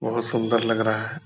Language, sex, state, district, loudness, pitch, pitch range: Hindi, male, Bihar, Purnia, -23 LUFS, 115 Hz, 110-115 Hz